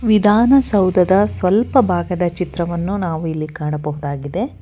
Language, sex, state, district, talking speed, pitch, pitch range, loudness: Kannada, female, Karnataka, Bangalore, 90 wpm, 180 Hz, 160-210 Hz, -17 LUFS